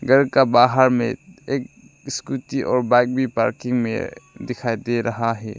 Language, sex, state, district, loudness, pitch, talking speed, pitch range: Hindi, male, Arunachal Pradesh, Lower Dibang Valley, -20 LUFS, 125 Hz, 160 wpm, 115-130 Hz